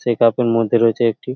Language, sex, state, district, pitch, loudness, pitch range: Bengali, male, West Bengal, Paschim Medinipur, 115 Hz, -16 LUFS, 115-120 Hz